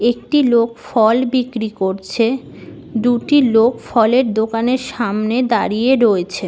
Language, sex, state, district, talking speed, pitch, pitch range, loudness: Bengali, female, West Bengal, Malda, 110 wpm, 235 Hz, 220-250 Hz, -16 LUFS